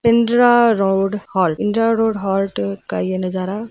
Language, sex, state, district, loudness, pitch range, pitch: Hindi, female, Uttar Pradesh, Varanasi, -17 LUFS, 185-225 Hz, 200 Hz